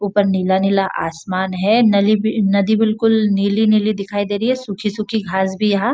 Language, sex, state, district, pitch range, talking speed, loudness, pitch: Hindi, female, Maharashtra, Nagpur, 195-215 Hz, 200 wpm, -17 LUFS, 205 Hz